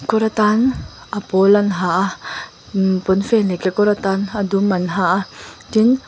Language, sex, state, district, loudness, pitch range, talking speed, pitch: Mizo, female, Mizoram, Aizawl, -17 LUFS, 190-210 Hz, 170 wpm, 200 Hz